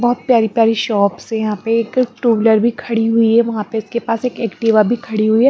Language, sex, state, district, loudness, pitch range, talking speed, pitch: Hindi, female, Bihar, Patna, -15 LUFS, 220-235 Hz, 240 wpm, 225 Hz